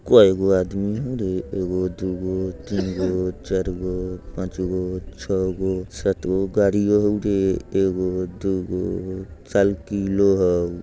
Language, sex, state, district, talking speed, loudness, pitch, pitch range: Bajjika, male, Bihar, Vaishali, 100 wpm, -22 LUFS, 95 Hz, 90-95 Hz